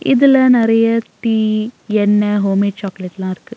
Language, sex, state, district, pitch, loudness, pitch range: Tamil, female, Tamil Nadu, Nilgiris, 215 Hz, -15 LUFS, 200-230 Hz